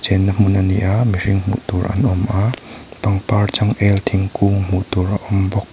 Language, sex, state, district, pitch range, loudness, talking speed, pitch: Mizo, male, Mizoram, Aizawl, 95-105 Hz, -17 LUFS, 210 wpm, 100 Hz